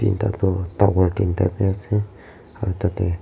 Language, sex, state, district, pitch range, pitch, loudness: Nagamese, male, Nagaland, Kohima, 90-100 Hz, 95 Hz, -21 LUFS